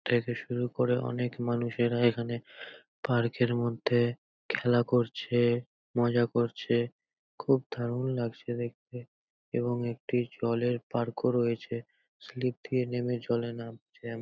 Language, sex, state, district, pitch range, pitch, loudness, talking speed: Bengali, male, West Bengal, North 24 Parganas, 120-125 Hz, 120 Hz, -31 LUFS, 125 wpm